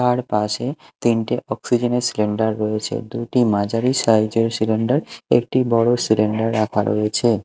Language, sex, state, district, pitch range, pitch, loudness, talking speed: Bengali, male, Odisha, Malkangiri, 110-120 Hz, 115 Hz, -19 LUFS, 135 wpm